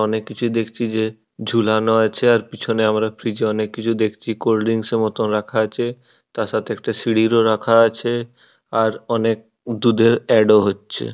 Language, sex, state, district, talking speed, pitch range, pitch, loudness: Bengali, male, West Bengal, Purulia, 180 wpm, 110-115 Hz, 110 Hz, -19 LUFS